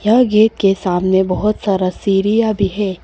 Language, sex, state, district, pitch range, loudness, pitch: Hindi, female, Arunachal Pradesh, Papum Pare, 190-215 Hz, -15 LUFS, 195 Hz